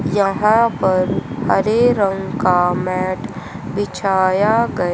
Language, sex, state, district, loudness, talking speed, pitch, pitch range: Hindi, female, Haryana, Rohtak, -17 LUFS, 95 wpm, 195 Hz, 185-210 Hz